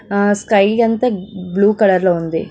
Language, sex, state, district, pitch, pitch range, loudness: Telugu, female, Telangana, Nalgonda, 200 Hz, 185-210 Hz, -15 LUFS